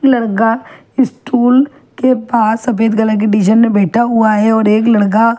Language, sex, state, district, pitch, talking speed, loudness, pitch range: Hindi, female, Chhattisgarh, Jashpur, 225 Hz, 180 wpm, -12 LUFS, 215-245 Hz